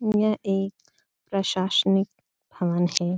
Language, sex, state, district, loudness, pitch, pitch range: Hindi, female, Bihar, Supaul, -25 LUFS, 195 Hz, 175-205 Hz